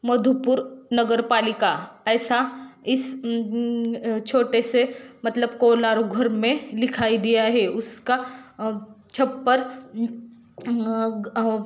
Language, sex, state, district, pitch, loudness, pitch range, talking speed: Hindi, female, Jharkhand, Jamtara, 235 Hz, -22 LUFS, 225-250 Hz, 75 wpm